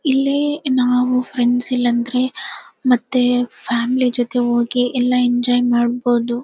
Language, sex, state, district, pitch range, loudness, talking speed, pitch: Kannada, female, Karnataka, Bellary, 240-250 Hz, -17 LUFS, 100 wpm, 245 Hz